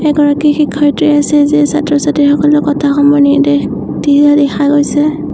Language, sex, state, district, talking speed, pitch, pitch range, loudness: Assamese, female, Assam, Sonitpur, 110 wpm, 290 Hz, 285-295 Hz, -10 LUFS